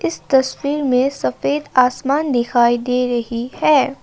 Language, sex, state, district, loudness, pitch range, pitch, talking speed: Hindi, female, Assam, Kamrup Metropolitan, -17 LUFS, 235-270 Hz, 250 Hz, 135 wpm